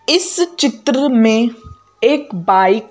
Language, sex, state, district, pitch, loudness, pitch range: Hindi, female, Madhya Pradesh, Bhopal, 275 Hz, -14 LUFS, 220-345 Hz